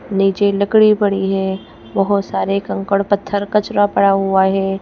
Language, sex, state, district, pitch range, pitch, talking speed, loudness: Hindi, female, Madhya Pradesh, Bhopal, 195-205 Hz, 195 Hz, 150 wpm, -16 LUFS